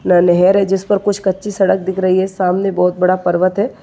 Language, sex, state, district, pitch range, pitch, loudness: Hindi, female, Maharashtra, Sindhudurg, 180-195 Hz, 190 Hz, -14 LUFS